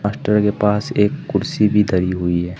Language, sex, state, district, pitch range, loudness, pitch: Hindi, male, Uttar Pradesh, Saharanpur, 90-105 Hz, -18 LUFS, 105 Hz